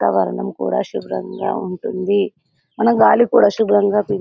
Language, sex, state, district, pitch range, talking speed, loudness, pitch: Telugu, female, Telangana, Karimnagar, 185-220 Hz, 130 wpm, -17 LUFS, 205 Hz